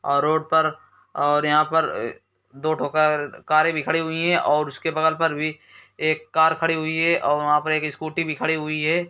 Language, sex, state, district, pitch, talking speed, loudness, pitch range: Hindi, male, Uttar Pradesh, Etah, 155 Hz, 220 wpm, -21 LUFS, 150-160 Hz